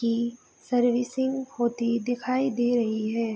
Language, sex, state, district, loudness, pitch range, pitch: Hindi, female, Bihar, Begusarai, -26 LUFS, 235-250 Hz, 240 Hz